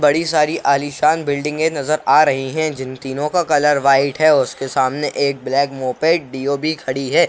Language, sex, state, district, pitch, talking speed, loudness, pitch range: Kumaoni, male, Uttarakhand, Uttarkashi, 145 Hz, 200 wpm, -17 LUFS, 135-155 Hz